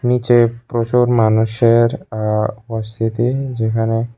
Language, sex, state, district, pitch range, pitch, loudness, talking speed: Bengali, male, Tripura, West Tripura, 110-120 Hz, 115 Hz, -16 LUFS, 85 wpm